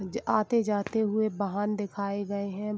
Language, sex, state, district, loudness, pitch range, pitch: Hindi, female, Bihar, Gopalganj, -29 LUFS, 200-215 Hz, 205 Hz